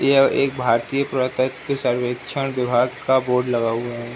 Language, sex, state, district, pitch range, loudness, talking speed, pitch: Hindi, male, Uttar Pradesh, Ghazipur, 120-135 Hz, -21 LUFS, 160 wpm, 125 Hz